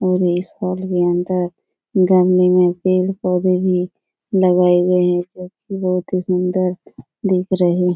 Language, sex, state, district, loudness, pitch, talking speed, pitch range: Hindi, female, Uttar Pradesh, Etah, -17 LUFS, 180 Hz, 150 wpm, 180-185 Hz